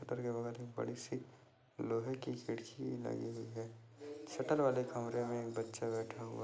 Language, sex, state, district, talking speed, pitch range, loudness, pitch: Hindi, male, Bihar, Jahanabad, 205 wpm, 115-125 Hz, -41 LUFS, 120 Hz